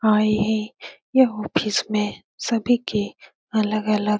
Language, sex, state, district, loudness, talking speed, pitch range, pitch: Hindi, female, Bihar, Saran, -22 LUFS, 130 wpm, 210-220 Hz, 215 Hz